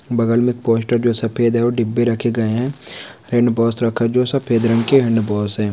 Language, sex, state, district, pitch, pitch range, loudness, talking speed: Hindi, male, Uttar Pradesh, Varanasi, 115 Hz, 115-120 Hz, -17 LUFS, 220 wpm